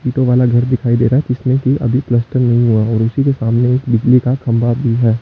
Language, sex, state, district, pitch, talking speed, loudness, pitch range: Hindi, male, Chandigarh, Chandigarh, 120 Hz, 275 wpm, -14 LUFS, 120-130 Hz